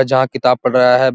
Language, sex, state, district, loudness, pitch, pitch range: Hindi, male, Uttar Pradesh, Muzaffarnagar, -14 LUFS, 130 Hz, 125-130 Hz